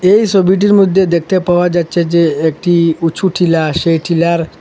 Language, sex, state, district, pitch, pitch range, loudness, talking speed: Bengali, male, Assam, Hailakandi, 170 Hz, 165-185 Hz, -12 LUFS, 145 wpm